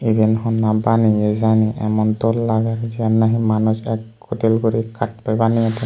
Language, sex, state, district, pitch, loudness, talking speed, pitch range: Chakma, male, Tripura, Unakoti, 110 Hz, -18 LUFS, 165 wpm, 110-115 Hz